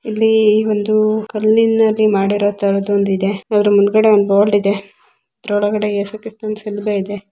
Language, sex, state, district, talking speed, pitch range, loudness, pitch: Kannada, female, Karnataka, Belgaum, 130 wpm, 200-215 Hz, -15 LUFS, 210 Hz